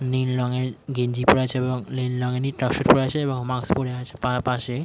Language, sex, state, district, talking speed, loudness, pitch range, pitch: Bengali, male, West Bengal, Jhargram, 225 wpm, -23 LUFS, 125-130 Hz, 125 Hz